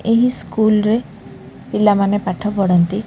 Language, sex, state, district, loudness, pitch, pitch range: Odia, female, Odisha, Khordha, -16 LUFS, 210 Hz, 200-220 Hz